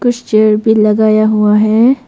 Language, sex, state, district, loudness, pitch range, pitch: Hindi, female, Arunachal Pradesh, Papum Pare, -10 LUFS, 215-230 Hz, 215 Hz